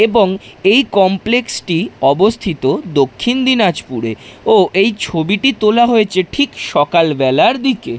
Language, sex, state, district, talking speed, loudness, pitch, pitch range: Bengali, male, West Bengal, Dakshin Dinajpur, 115 wpm, -14 LUFS, 195 Hz, 150-230 Hz